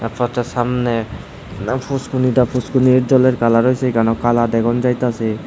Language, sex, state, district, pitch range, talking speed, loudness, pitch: Bengali, male, Tripura, West Tripura, 115-130 Hz, 145 wpm, -16 LUFS, 120 Hz